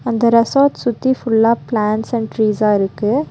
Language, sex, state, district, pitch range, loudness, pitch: Tamil, female, Tamil Nadu, Nilgiris, 215-245 Hz, -16 LUFS, 230 Hz